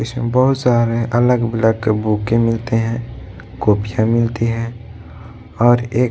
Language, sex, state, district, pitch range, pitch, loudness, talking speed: Hindi, male, Bihar, Jahanabad, 110-120 Hz, 115 Hz, -17 LUFS, 145 wpm